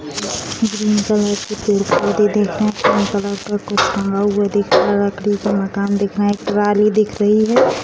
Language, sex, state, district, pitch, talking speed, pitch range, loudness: Hindi, female, Bihar, Purnia, 205 Hz, 205 wpm, 200-210 Hz, -17 LUFS